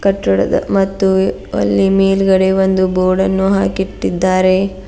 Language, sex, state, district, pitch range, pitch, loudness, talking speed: Kannada, female, Karnataka, Bidar, 185-195 Hz, 190 Hz, -14 LUFS, 100 wpm